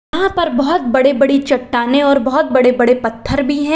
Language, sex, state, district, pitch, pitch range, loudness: Hindi, female, Uttar Pradesh, Lalitpur, 275 Hz, 255-290 Hz, -14 LUFS